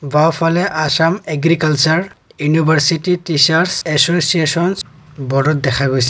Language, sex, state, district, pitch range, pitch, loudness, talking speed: Assamese, male, Assam, Kamrup Metropolitan, 150-170 Hz, 160 Hz, -14 LUFS, 90 wpm